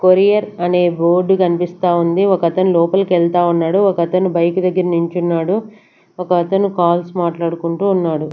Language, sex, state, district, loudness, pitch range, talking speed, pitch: Telugu, female, Andhra Pradesh, Sri Satya Sai, -15 LUFS, 170-185 Hz, 120 wpm, 180 Hz